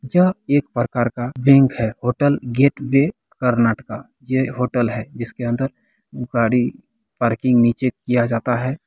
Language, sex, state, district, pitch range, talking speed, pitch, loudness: Hindi, male, Bihar, Kishanganj, 120-135 Hz, 140 wpm, 125 Hz, -19 LUFS